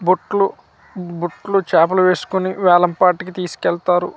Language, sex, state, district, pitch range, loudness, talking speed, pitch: Telugu, male, Andhra Pradesh, Manyam, 175-185 Hz, -17 LUFS, 85 wpm, 180 Hz